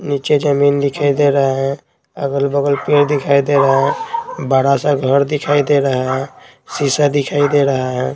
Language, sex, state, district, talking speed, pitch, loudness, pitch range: Hindi, male, Bihar, Patna, 175 wpm, 140 Hz, -15 LUFS, 135-145 Hz